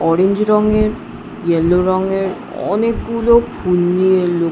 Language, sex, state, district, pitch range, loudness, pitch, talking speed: Bengali, female, West Bengal, Jhargram, 175-215 Hz, -15 LUFS, 190 Hz, 105 wpm